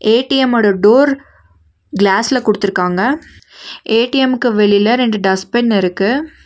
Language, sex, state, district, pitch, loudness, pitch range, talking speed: Tamil, female, Tamil Nadu, Nilgiris, 220 Hz, -13 LUFS, 195-255 Hz, 95 wpm